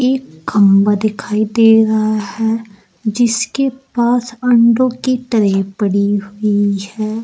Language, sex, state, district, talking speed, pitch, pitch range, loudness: Hindi, female, Uttar Pradesh, Saharanpur, 110 wpm, 215 Hz, 205-235 Hz, -15 LUFS